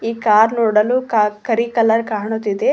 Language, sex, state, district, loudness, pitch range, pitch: Kannada, female, Karnataka, Koppal, -16 LUFS, 210-230 Hz, 225 Hz